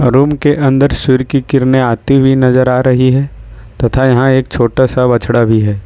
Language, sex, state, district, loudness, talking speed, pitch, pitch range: Hindi, male, Jharkhand, Ranchi, -11 LUFS, 205 wpm, 130 Hz, 120-135 Hz